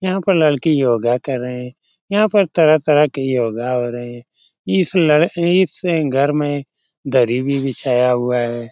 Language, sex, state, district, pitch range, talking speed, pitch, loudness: Hindi, male, Bihar, Lakhisarai, 125-170 Hz, 170 wpm, 140 Hz, -17 LUFS